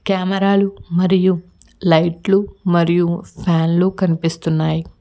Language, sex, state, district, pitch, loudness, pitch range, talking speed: Telugu, female, Telangana, Hyderabad, 175 Hz, -17 LUFS, 165-190 Hz, 110 wpm